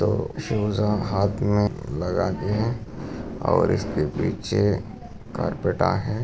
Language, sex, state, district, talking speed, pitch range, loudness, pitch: Hindi, male, Maharashtra, Sindhudurg, 105 wpm, 105-110 Hz, -24 LUFS, 105 Hz